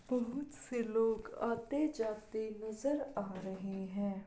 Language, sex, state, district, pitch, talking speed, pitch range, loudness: Hindi, female, Uttar Pradesh, Jalaun, 220 Hz, 140 wpm, 200-250 Hz, -38 LUFS